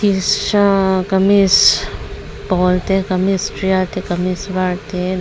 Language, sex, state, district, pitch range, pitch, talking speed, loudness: Mizo, female, Mizoram, Aizawl, 185-195 Hz, 190 Hz, 125 wpm, -15 LUFS